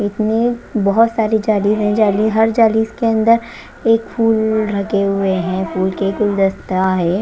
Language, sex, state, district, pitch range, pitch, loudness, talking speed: Hindi, female, Chandigarh, Chandigarh, 195-225 Hz, 215 Hz, -16 LUFS, 160 wpm